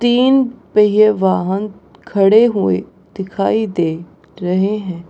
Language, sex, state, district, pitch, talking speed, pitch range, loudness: Hindi, female, Bihar, Gaya, 200 Hz, 105 wpm, 180-215 Hz, -15 LUFS